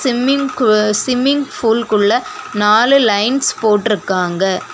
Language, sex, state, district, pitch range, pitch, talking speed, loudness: Tamil, female, Tamil Nadu, Kanyakumari, 210-255 Hz, 220 Hz, 100 wpm, -14 LUFS